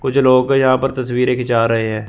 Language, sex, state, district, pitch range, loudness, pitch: Hindi, male, Chandigarh, Chandigarh, 115-130 Hz, -15 LUFS, 125 Hz